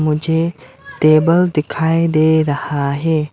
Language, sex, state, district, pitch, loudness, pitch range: Hindi, male, Arunachal Pradesh, Lower Dibang Valley, 155 Hz, -15 LUFS, 150-165 Hz